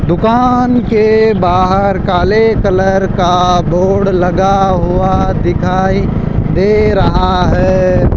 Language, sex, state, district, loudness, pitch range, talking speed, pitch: Hindi, male, Rajasthan, Jaipur, -11 LUFS, 180-215 Hz, 95 wpm, 190 Hz